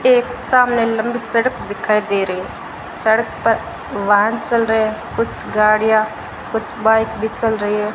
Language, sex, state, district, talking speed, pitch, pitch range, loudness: Hindi, female, Rajasthan, Bikaner, 160 wpm, 220 Hz, 215-230 Hz, -17 LUFS